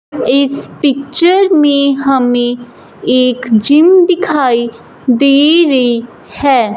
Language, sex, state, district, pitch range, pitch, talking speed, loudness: Hindi, female, Punjab, Fazilka, 245-295 Hz, 275 Hz, 90 wpm, -10 LUFS